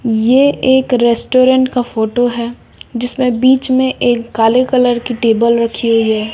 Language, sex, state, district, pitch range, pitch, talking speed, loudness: Hindi, female, Bihar, West Champaran, 230-255 Hz, 240 Hz, 160 wpm, -13 LUFS